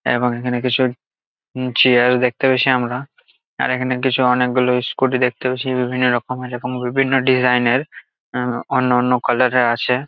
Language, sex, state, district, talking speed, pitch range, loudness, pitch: Bengali, male, West Bengal, Jalpaiguri, 165 wpm, 125-130 Hz, -17 LUFS, 125 Hz